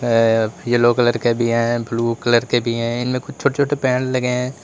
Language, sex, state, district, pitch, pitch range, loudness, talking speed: Hindi, male, Uttar Pradesh, Lalitpur, 120 Hz, 115-125 Hz, -18 LUFS, 220 wpm